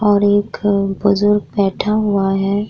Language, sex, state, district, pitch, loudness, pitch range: Hindi, female, Bihar, Vaishali, 205 Hz, -16 LUFS, 200-210 Hz